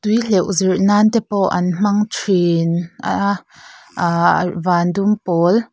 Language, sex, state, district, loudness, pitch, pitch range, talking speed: Mizo, female, Mizoram, Aizawl, -17 LUFS, 190 Hz, 175-210 Hz, 155 wpm